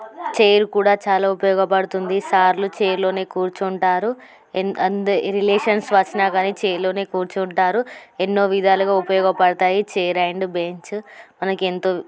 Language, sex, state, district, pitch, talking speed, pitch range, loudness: Telugu, female, Telangana, Karimnagar, 190 Hz, 105 wpm, 185-200 Hz, -19 LUFS